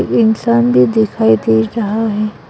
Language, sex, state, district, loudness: Hindi, female, Arunachal Pradesh, Longding, -13 LUFS